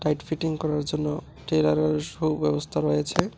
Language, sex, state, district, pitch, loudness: Bengali, male, Tripura, West Tripura, 145 Hz, -26 LUFS